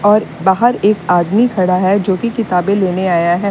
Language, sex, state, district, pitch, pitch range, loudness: Hindi, female, Uttar Pradesh, Lalitpur, 195 Hz, 180-210 Hz, -14 LUFS